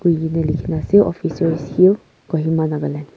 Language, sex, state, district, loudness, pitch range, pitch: Nagamese, female, Nagaland, Kohima, -18 LUFS, 150-170 Hz, 160 Hz